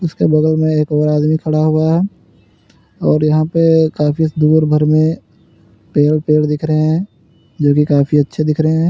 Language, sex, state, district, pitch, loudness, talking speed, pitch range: Hindi, male, Uttar Pradesh, Lalitpur, 155 Hz, -14 LUFS, 190 wpm, 150-160 Hz